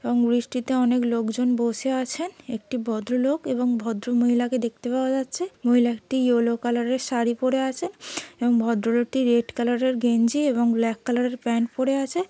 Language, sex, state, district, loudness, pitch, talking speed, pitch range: Bengali, female, West Bengal, Malda, -23 LUFS, 245 Hz, 150 wpm, 235-260 Hz